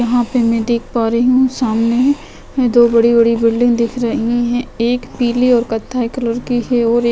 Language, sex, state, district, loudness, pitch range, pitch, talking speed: Hindi, female, Chhattisgarh, Korba, -15 LUFS, 230-245 Hz, 240 Hz, 200 wpm